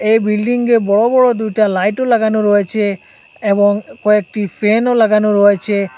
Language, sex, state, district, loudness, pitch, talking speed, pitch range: Bengali, male, Assam, Hailakandi, -14 LUFS, 210 Hz, 130 wpm, 205-225 Hz